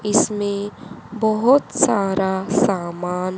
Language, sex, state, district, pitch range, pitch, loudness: Hindi, female, Haryana, Rohtak, 190-215 Hz, 200 Hz, -19 LUFS